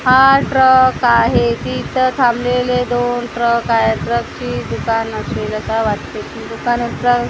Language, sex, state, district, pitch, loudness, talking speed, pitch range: Marathi, female, Maharashtra, Gondia, 240 Hz, -15 LUFS, 130 wpm, 220-250 Hz